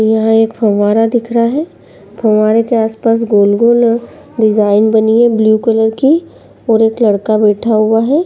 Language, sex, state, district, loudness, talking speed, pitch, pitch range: Hindi, female, Uttar Pradesh, Jyotiba Phule Nagar, -11 LUFS, 175 wpm, 225 Hz, 215-235 Hz